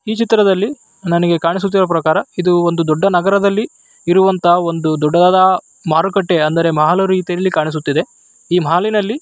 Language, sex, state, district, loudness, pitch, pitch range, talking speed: Kannada, male, Karnataka, Raichur, -14 LUFS, 180 Hz, 165-195 Hz, 105 wpm